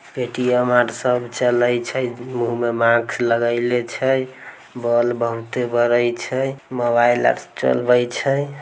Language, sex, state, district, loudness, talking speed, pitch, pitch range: Maithili, male, Bihar, Samastipur, -19 LUFS, 125 wpm, 120 Hz, 120-125 Hz